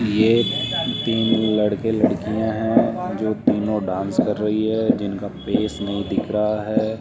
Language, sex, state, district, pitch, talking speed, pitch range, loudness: Hindi, male, Rajasthan, Jaipur, 105 Hz, 145 wpm, 105-110 Hz, -21 LUFS